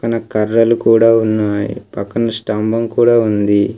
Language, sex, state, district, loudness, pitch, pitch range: Telugu, male, Telangana, Komaram Bheem, -14 LUFS, 115 Hz, 105-115 Hz